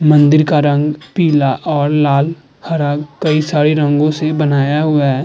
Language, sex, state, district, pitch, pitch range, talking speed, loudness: Hindi, female, Uttar Pradesh, Hamirpur, 150 Hz, 145-155 Hz, 160 wpm, -14 LUFS